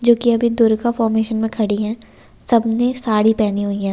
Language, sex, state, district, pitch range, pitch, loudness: Hindi, female, Delhi, New Delhi, 215-235 Hz, 225 Hz, -17 LUFS